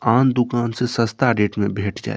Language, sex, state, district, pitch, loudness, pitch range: Maithili, male, Bihar, Saharsa, 120 Hz, -20 LUFS, 105-125 Hz